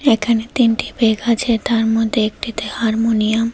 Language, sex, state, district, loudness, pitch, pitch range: Bengali, female, Tripura, West Tripura, -17 LUFS, 225 Hz, 220-235 Hz